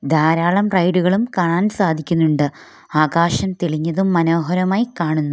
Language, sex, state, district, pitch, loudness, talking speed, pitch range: Malayalam, female, Kerala, Kollam, 170 Hz, -17 LUFS, 90 wpm, 160-185 Hz